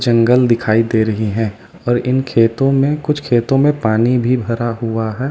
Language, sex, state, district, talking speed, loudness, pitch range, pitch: Hindi, male, Uttar Pradesh, Lalitpur, 190 wpm, -15 LUFS, 115-135 Hz, 120 Hz